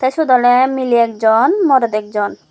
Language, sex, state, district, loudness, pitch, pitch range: Chakma, female, Tripura, Dhalai, -13 LUFS, 245 Hz, 220-260 Hz